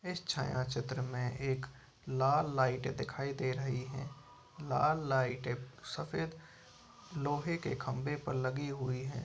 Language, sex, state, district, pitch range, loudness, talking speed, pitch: Hindi, male, Uttar Pradesh, Etah, 130-145 Hz, -36 LUFS, 135 wpm, 130 Hz